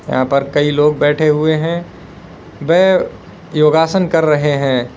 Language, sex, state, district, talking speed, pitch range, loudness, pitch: Hindi, male, Uttar Pradesh, Lalitpur, 145 wpm, 145-170 Hz, -14 LUFS, 155 Hz